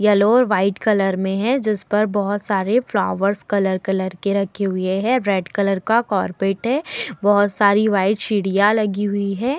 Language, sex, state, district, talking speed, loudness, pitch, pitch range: Hindi, female, Uttar Pradesh, Muzaffarnagar, 180 wpm, -19 LUFS, 200 Hz, 195-215 Hz